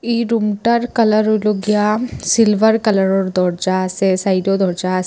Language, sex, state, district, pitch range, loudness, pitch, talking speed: Bengali, female, Assam, Hailakandi, 190-220 Hz, -16 LUFS, 210 Hz, 140 wpm